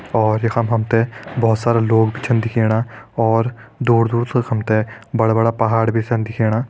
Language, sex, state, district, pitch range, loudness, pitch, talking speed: Hindi, male, Uttarakhand, Tehri Garhwal, 110-115 Hz, -18 LUFS, 115 Hz, 190 wpm